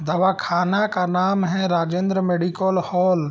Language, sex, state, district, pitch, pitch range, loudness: Hindi, male, Bihar, Gopalganj, 180 Hz, 175-190 Hz, -21 LUFS